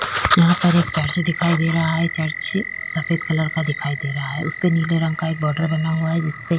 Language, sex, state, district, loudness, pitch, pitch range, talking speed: Hindi, female, Maharashtra, Chandrapur, -20 LUFS, 160 Hz, 155-165 Hz, 245 wpm